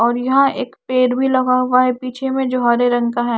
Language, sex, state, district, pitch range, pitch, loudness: Hindi, female, Haryana, Charkhi Dadri, 240-260 Hz, 255 Hz, -16 LUFS